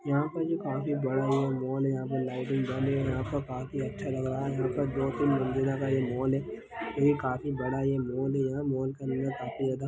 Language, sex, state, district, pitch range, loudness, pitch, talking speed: Hindi, male, Chhattisgarh, Bastar, 130-135 Hz, -30 LUFS, 135 Hz, 245 wpm